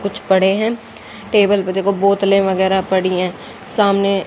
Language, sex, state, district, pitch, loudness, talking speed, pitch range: Hindi, female, Haryana, Jhajjar, 195 Hz, -16 LUFS, 155 wpm, 190-200 Hz